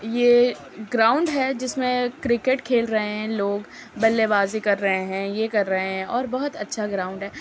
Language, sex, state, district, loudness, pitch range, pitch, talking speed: Hindi, female, Uttar Pradesh, Muzaffarnagar, -22 LUFS, 200-245 Hz, 220 Hz, 180 wpm